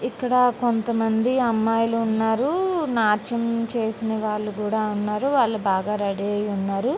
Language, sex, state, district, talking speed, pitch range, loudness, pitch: Telugu, female, Andhra Pradesh, Visakhapatnam, 120 wpm, 210-240 Hz, -23 LUFS, 225 Hz